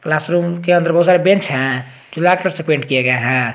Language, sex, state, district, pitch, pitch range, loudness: Hindi, male, Jharkhand, Garhwa, 160 Hz, 130-175 Hz, -15 LUFS